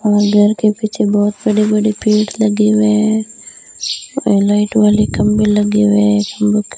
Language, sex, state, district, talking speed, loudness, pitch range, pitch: Hindi, female, Rajasthan, Bikaner, 175 wpm, -13 LUFS, 210-215 Hz, 210 Hz